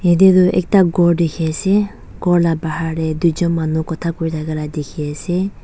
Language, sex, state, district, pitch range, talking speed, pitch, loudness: Nagamese, female, Nagaland, Dimapur, 160-180 Hz, 200 wpm, 170 Hz, -17 LUFS